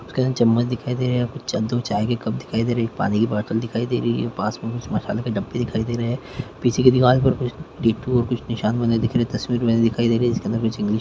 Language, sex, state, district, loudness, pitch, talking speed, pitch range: Hindi, male, Chhattisgarh, Korba, -21 LUFS, 120 Hz, 310 wpm, 115-125 Hz